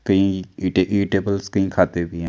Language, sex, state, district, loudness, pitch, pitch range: Hindi, male, Chandigarh, Chandigarh, -20 LUFS, 95 Hz, 90-100 Hz